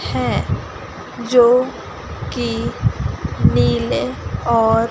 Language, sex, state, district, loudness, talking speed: Hindi, female, Chandigarh, Chandigarh, -18 LUFS, 60 wpm